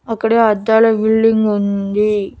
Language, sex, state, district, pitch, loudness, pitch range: Telugu, female, Andhra Pradesh, Annamaya, 220 Hz, -14 LUFS, 205-225 Hz